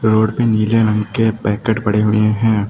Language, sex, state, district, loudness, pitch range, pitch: Hindi, male, Uttar Pradesh, Lucknow, -15 LUFS, 105-110 Hz, 110 Hz